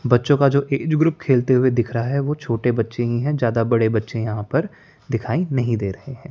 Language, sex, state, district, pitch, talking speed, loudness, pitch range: Hindi, male, Chandigarh, Chandigarh, 125 Hz, 245 wpm, -20 LUFS, 115-140 Hz